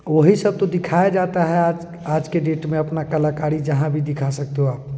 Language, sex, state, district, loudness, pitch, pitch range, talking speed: Hindi, male, Bihar, East Champaran, -20 LUFS, 155 Hz, 150-170 Hz, 215 wpm